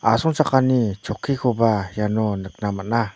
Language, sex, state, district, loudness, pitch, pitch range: Garo, male, Meghalaya, North Garo Hills, -21 LUFS, 115 Hz, 105-125 Hz